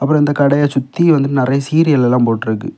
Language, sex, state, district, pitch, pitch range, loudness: Tamil, male, Tamil Nadu, Kanyakumari, 140 Hz, 130-145 Hz, -14 LUFS